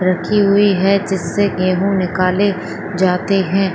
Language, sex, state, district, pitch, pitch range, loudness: Hindi, female, Jharkhand, Sahebganj, 190 Hz, 185-200 Hz, -16 LUFS